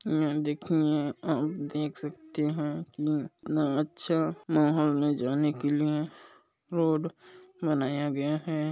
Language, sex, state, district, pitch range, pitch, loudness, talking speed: Hindi, male, Chhattisgarh, Balrampur, 150-160 Hz, 150 Hz, -29 LUFS, 125 wpm